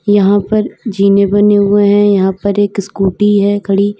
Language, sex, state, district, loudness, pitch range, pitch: Hindi, female, Uttar Pradesh, Lalitpur, -11 LUFS, 200-205 Hz, 205 Hz